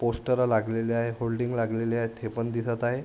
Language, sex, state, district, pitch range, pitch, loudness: Marathi, male, Maharashtra, Sindhudurg, 115-120 Hz, 115 Hz, -28 LUFS